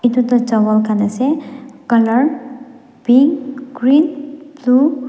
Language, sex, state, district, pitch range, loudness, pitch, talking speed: Nagamese, female, Nagaland, Dimapur, 245-280 Hz, -15 LUFS, 260 Hz, 120 wpm